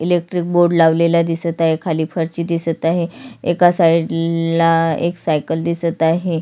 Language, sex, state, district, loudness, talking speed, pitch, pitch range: Marathi, female, Maharashtra, Sindhudurg, -17 LUFS, 140 wpm, 165 Hz, 165-170 Hz